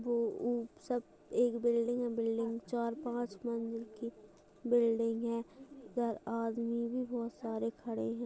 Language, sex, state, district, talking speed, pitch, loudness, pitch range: Hindi, female, Uttar Pradesh, Budaun, 140 wpm, 235 Hz, -36 LUFS, 230-240 Hz